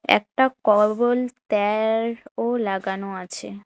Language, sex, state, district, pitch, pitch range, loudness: Bengali, female, West Bengal, Alipurduar, 215 Hz, 195-240 Hz, -22 LUFS